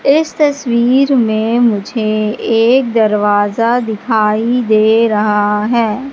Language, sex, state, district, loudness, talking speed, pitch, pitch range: Hindi, female, Madhya Pradesh, Katni, -13 LUFS, 100 wpm, 225 Hz, 215-245 Hz